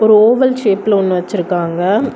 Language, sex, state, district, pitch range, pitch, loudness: Tamil, female, Tamil Nadu, Kanyakumari, 180-220 Hz, 200 Hz, -13 LUFS